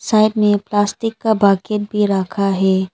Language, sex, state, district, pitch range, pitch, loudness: Hindi, female, Arunachal Pradesh, Lower Dibang Valley, 195-215 Hz, 205 Hz, -16 LUFS